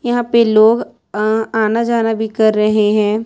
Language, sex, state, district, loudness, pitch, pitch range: Hindi, female, Chhattisgarh, Raipur, -14 LUFS, 220 Hz, 215-230 Hz